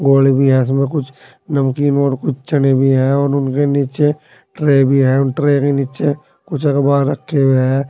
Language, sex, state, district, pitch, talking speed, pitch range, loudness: Hindi, male, Uttar Pradesh, Saharanpur, 140 Hz, 195 wpm, 135-145 Hz, -15 LUFS